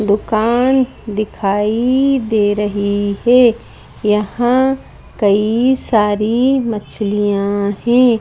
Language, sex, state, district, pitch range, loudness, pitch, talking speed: Hindi, female, Madhya Pradesh, Bhopal, 205-245 Hz, -15 LUFS, 215 Hz, 75 wpm